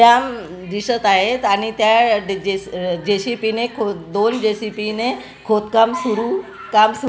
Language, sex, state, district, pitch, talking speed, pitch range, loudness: Marathi, female, Maharashtra, Gondia, 215 Hz, 145 wpm, 205-235 Hz, -18 LUFS